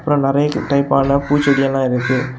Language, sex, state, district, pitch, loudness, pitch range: Tamil, male, Tamil Nadu, Kanyakumari, 140 Hz, -16 LUFS, 135-145 Hz